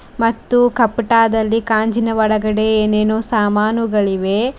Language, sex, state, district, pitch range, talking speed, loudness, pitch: Kannada, female, Karnataka, Bidar, 215-230 Hz, 65 wpm, -15 LUFS, 220 Hz